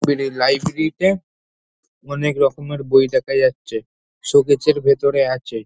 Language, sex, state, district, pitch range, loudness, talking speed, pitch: Bengali, male, West Bengal, North 24 Parganas, 130-175 Hz, -17 LUFS, 125 wpm, 140 Hz